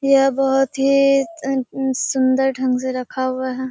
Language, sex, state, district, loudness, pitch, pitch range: Hindi, female, Bihar, Kishanganj, -18 LUFS, 265 Hz, 260-270 Hz